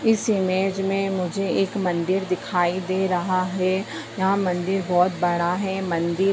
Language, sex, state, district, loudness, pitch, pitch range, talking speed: Hindi, female, Bihar, Madhepura, -23 LUFS, 185 Hz, 180-195 Hz, 160 wpm